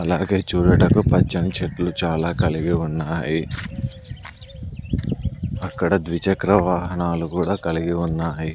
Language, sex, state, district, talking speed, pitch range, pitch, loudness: Telugu, male, Andhra Pradesh, Sri Satya Sai, 90 wpm, 85-95 Hz, 85 Hz, -21 LUFS